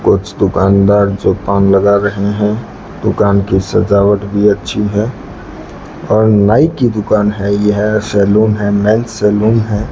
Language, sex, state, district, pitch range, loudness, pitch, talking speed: Hindi, male, Rajasthan, Bikaner, 100-105 Hz, -12 LUFS, 105 Hz, 145 wpm